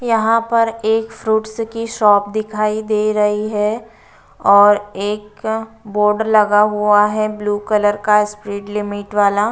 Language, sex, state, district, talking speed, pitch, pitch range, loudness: Hindi, female, Uttar Pradesh, Budaun, 145 wpm, 210 Hz, 210-220 Hz, -16 LUFS